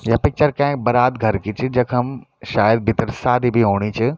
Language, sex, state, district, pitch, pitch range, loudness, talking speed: Garhwali, male, Uttarakhand, Tehri Garhwal, 120 Hz, 110-130 Hz, -18 LUFS, 200 wpm